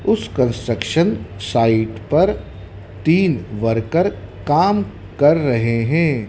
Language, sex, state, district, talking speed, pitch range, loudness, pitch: Hindi, male, Madhya Pradesh, Dhar, 95 wpm, 105-150 Hz, -18 LUFS, 115 Hz